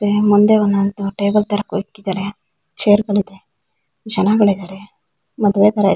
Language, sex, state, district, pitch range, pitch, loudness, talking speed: Kannada, female, Karnataka, Belgaum, 200-210 Hz, 205 Hz, -16 LUFS, 120 wpm